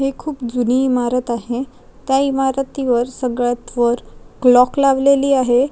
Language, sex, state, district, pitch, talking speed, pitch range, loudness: Marathi, female, Maharashtra, Chandrapur, 255 Hz, 115 wpm, 245-270 Hz, -17 LUFS